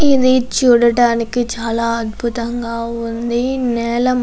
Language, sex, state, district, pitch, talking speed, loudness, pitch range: Telugu, female, Andhra Pradesh, Anantapur, 235 Hz, 100 wpm, -16 LUFS, 230-245 Hz